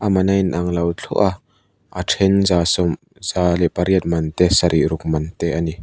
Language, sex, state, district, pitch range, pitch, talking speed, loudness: Mizo, male, Mizoram, Aizawl, 85-95 Hz, 85 Hz, 205 wpm, -18 LUFS